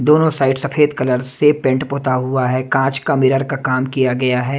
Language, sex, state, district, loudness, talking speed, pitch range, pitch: Hindi, male, Odisha, Nuapada, -16 LUFS, 220 wpm, 130-140 Hz, 135 Hz